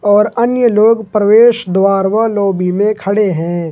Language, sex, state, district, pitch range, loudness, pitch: Hindi, male, Jharkhand, Ranchi, 195-225 Hz, -12 LUFS, 205 Hz